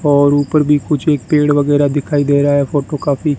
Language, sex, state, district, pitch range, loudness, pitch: Hindi, male, Rajasthan, Bikaner, 145-150 Hz, -14 LUFS, 145 Hz